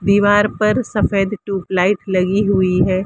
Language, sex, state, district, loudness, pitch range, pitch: Hindi, female, Maharashtra, Mumbai Suburban, -16 LUFS, 185-205 Hz, 200 Hz